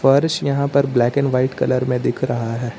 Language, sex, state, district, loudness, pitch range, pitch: Hindi, male, Uttar Pradesh, Lucknow, -19 LUFS, 120-140 Hz, 130 Hz